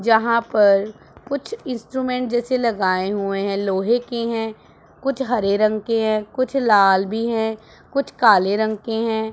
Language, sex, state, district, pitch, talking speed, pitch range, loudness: Hindi, female, Punjab, Pathankot, 225 Hz, 160 wpm, 205-245 Hz, -20 LUFS